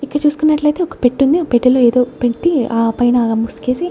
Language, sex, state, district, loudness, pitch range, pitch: Telugu, female, Andhra Pradesh, Sri Satya Sai, -14 LUFS, 240-300 Hz, 250 Hz